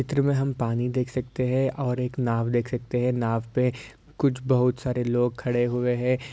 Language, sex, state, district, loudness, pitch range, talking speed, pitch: Hindi, male, Uttar Pradesh, Ghazipur, -25 LUFS, 120-130 Hz, 210 wpm, 125 Hz